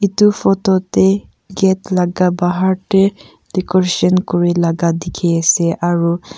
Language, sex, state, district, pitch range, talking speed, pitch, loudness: Nagamese, female, Nagaland, Kohima, 175-190 Hz, 105 wpm, 185 Hz, -15 LUFS